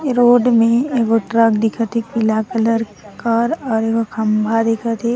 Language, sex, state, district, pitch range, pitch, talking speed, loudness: Sadri, female, Chhattisgarh, Jashpur, 225-235 Hz, 230 Hz, 150 wpm, -16 LUFS